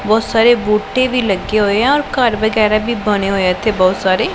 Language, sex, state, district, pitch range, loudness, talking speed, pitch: Punjabi, female, Punjab, Pathankot, 200-235 Hz, -14 LUFS, 235 wpm, 215 Hz